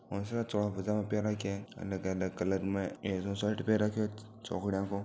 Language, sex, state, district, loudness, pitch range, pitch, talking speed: Marwari, male, Rajasthan, Nagaur, -34 LUFS, 95-105 Hz, 100 Hz, 215 wpm